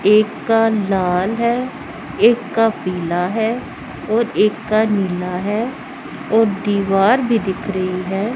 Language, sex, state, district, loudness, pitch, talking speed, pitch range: Hindi, female, Punjab, Pathankot, -18 LUFS, 215 Hz, 135 wpm, 195-230 Hz